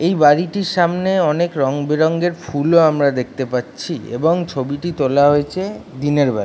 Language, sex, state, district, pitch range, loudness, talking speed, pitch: Bengali, male, West Bengal, Jhargram, 140-175 Hz, -17 LUFS, 165 wpm, 150 Hz